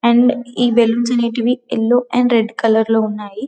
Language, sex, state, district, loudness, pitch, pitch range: Telugu, female, Telangana, Karimnagar, -15 LUFS, 235 Hz, 225-245 Hz